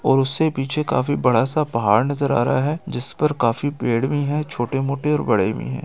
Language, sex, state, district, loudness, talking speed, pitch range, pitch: Hindi, male, Chhattisgarh, Raigarh, -20 LUFS, 225 wpm, 125-150 Hz, 135 Hz